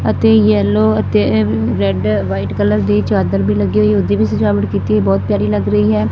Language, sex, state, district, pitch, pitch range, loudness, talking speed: Punjabi, female, Punjab, Fazilka, 105 Hz, 100-105 Hz, -14 LUFS, 195 wpm